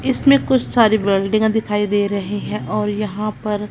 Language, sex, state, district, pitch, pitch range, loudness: Hindi, female, Punjab, Kapurthala, 210 Hz, 205-220 Hz, -18 LUFS